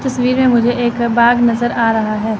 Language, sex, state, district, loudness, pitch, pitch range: Hindi, female, Chandigarh, Chandigarh, -14 LUFS, 235 Hz, 230-245 Hz